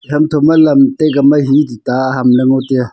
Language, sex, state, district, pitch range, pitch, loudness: Wancho, male, Arunachal Pradesh, Longding, 130-150 Hz, 140 Hz, -11 LUFS